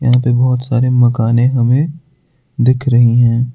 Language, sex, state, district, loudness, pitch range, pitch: Hindi, male, Arunachal Pradesh, Lower Dibang Valley, -13 LUFS, 120-130 Hz, 125 Hz